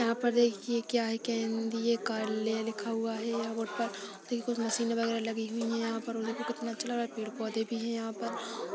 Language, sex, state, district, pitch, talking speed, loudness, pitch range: Hindi, female, Chhattisgarh, Balrampur, 225 Hz, 185 wpm, -33 LUFS, 225-230 Hz